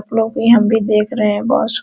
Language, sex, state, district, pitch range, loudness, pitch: Hindi, female, Jharkhand, Sahebganj, 210-230 Hz, -14 LUFS, 220 Hz